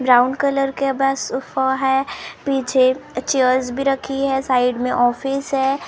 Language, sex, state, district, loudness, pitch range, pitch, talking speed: Hindi, male, Maharashtra, Gondia, -19 LUFS, 255-275 Hz, 265 Hz, 155 wpm